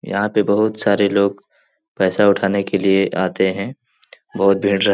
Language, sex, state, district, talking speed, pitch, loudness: Hindi, male, Bihar, Jahanabad, 170 wpm, 100 Hz, -17 LUFS